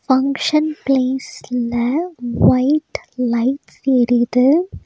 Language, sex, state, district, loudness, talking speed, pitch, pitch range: Tamil, female, Tamil Nadu, Nilgiris, -17 LUFS, 60 wpm, 265 Hz, 245-300 Hz